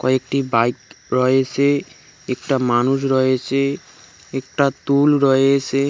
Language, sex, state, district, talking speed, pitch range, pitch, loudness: Bengali, male, West Bengal, Cooch Behar, 90 wpm, 125-140 Hz, 135 Hz, -18 LUFS